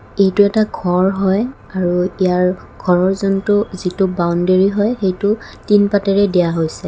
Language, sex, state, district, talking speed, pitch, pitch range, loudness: Assamese, female, Assam, Kamrup Metropolitan, 140 wpm, 190 Hz, 180-205 Hz, -16 LUFS